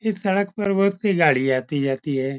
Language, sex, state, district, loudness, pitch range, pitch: Hindi, male, Uttar Pradesh, Etah, -21 LUFS, 135-200 Hz, 185 Hz